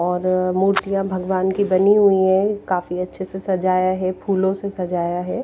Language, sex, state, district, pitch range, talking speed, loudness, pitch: Hindi, female, Himachal Pradesh, Shimla, 185-195 Hz, 175 wpm, -19 LUFS, 190 Hz